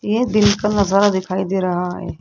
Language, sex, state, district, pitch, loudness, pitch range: Hindi, female, Rajasthan, Jaipur, 200 Hz, -17 LUFS, 185-210 Hz